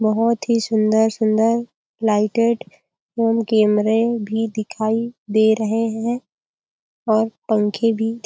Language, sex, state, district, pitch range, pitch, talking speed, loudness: Hindi, female, Chhattisgarh, Balrampur, 215-230 Hz, 220 Hz, 115 wpm, -19 LUFS